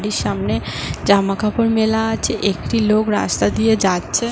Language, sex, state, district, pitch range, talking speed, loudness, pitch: Bengali, female, West Bengal, Paschim Medinipur, 190-220 Hz, 155 wpm, -18 LUFS, 210 Hz